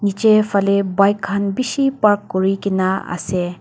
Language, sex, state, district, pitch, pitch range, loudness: Nagamese, female, Nagaland, Dimapur, 200 Hz, 190-210 Hz, -17 LUFS